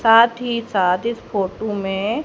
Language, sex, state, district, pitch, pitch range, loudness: Hindi, female, Haryana, Jhajjar, 220 Hz, 195-235 Hz, -19 LUFS